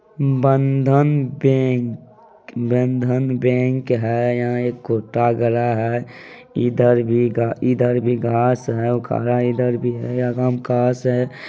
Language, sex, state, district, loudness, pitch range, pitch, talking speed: Maithili, male, Bihar, Madhepura, -19 LUFS, 120-125 Hz, 125 Hz, 125 wpm